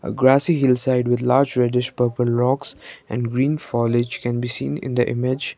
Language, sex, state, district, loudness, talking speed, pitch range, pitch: English, male, Sikkim, Gangtok, -20 LUFS, 195 wpm, 120-130 Hz, 125 Hz